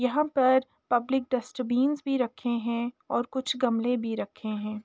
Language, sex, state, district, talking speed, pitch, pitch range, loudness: Hindi, female, Uttar Pradesh, Jalaun, 160 wpm, 250 Hz, 235-260 Hz, -28 LUFS